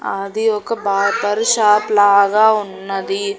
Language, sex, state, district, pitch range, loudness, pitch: Telugu, female, Andhra Pradesh, Annamaya, 200-220 Hz, -15 LUFS, 210 Hz